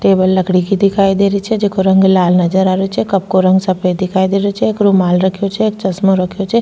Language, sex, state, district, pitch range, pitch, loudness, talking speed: Rajasthani, female, Rajasthan, Nagaur, 185-200 Hz, 190 Hz, -13 LUFS, 265 wpm